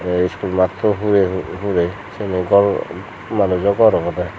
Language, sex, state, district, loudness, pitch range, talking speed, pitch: Chakma, male, Tripura, Unakoti, -18 LUFS, 90-100 Hz, 135 wpm, 95 Hz